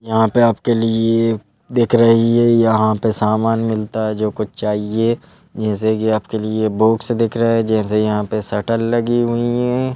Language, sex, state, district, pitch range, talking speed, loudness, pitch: Hindi, male, Madhya Pradesh, Bhopal, 110-115 Hz, 185 wpm, -17 LUFS, 115 Hz